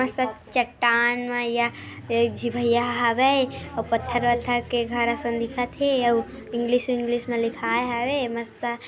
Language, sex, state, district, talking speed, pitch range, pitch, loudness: Hindi, female, Chhattisgarh, Kabirdham, 135 wpm, 235-245 Hz, 240 Hz, -24 LUFS